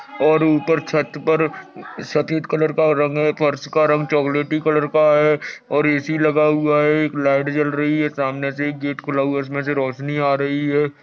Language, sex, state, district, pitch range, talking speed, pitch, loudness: Hindi, male, Maharashtra, Aurangabad, 145-155 Hz, 200 wpm, 150 Hz, -19 LUFS